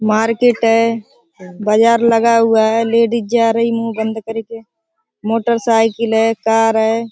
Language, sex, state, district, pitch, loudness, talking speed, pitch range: Hindi, female, Uttar Pradesh, Budaun, 225 Hz, -14 LUFS, 160 wpm, 220-230 Hz